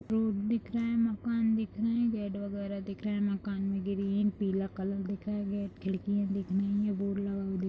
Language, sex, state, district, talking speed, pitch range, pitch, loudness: Hindi, female, Uttar Pradesh, Jalaun, 240 wpm, 195-210 Hz, 200 Hz, -33 LUFS